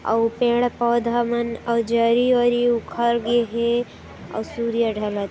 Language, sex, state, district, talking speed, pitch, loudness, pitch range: Hindi, female, Chhattisgarh, Kabirdham, 170 wpm, 235 Hz, -21 LUFS, 230-240 Hz